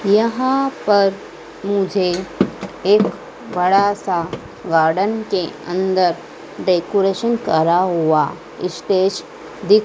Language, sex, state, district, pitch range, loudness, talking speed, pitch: Hindi, female, Madhya Pradesh, Dhar, 175-205 Hz, -18 LUFS, 85 wpm, 190 Hz